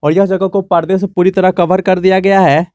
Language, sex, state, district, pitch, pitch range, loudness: Hindi, male, Jharkhand, Garhwa, 190 Hz, 180-195 Hz, -11 LUFS